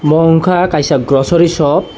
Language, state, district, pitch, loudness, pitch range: Kokborok, Tripura, Dhalai, 160 Hz, -11 LUFS, 145-170 Hz